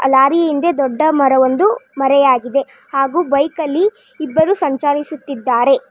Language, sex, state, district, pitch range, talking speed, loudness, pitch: Kannada, female, Karnataka, Bangalore, 270-335 Hz, 110 wpm, -15 LUFS, 290 Hz